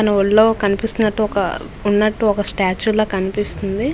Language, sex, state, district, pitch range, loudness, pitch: Telugu, female, Andhra Pradesh, Visakhapatnam, 200-215 Hz, -17 LUFS, 210 Hz